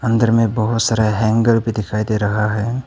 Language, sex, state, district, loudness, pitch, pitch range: Hindi, male, Arunachal Pradesh, Papum Pare, -17 LUFS, 110 Hz, 105-115 Hz